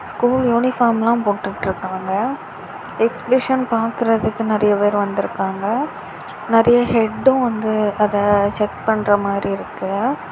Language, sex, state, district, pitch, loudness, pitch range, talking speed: Tamil, female, Tamil Nadu, Kanyakumari, 220 Hz, -18 LUFS, 205-240 Hz, 100 wpm